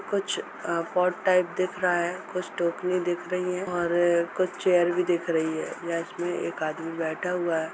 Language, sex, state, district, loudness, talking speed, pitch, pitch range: Hindi, female, Uttar Pradesh, Etah, -27 LUFS, 200 wpm, 175 Hz, 170-180 Hz